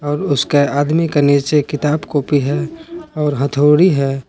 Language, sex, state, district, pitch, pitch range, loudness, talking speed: Hindi, male, Jharkhand, Palamu, 145 Hz, 140-155 Hz, -15 LUFS, 155 wpm